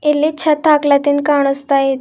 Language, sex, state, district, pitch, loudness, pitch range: Kannada, female, Karnataka, Bidar, 290 Hz, -14 LUFS, 280-300 Hz